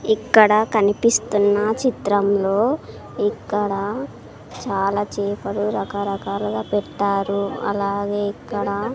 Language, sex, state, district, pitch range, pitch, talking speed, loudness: Telugu, female, Andhra Pradesh, Sri Satya Sai, 200-215 Hz, 205 Hz, 65 wpm, -20 LUFS